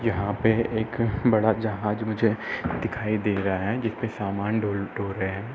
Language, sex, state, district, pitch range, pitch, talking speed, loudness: Hindi, male, Uttar Pradesh, Hamirpur, 100-115 Hz, 110 Hz, 175 wpm, -26 LUFS